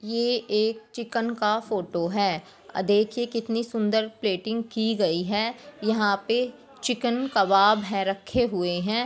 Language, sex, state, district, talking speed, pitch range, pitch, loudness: Hindi, female, Bihar, Begusarai, 145 wpm, 200-235 Hz, 220 Hz, -25 LUFS